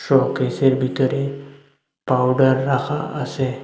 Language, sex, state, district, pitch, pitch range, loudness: Bengali, male, Assam, Hailakandi, 135 Hz, 130-140 Hz, -20 LUFS